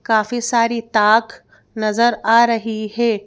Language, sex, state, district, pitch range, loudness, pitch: Hindi, female, Madhya Pradesh, Bhopal, 220-235 Hz, -17 LUFS, 230 Hz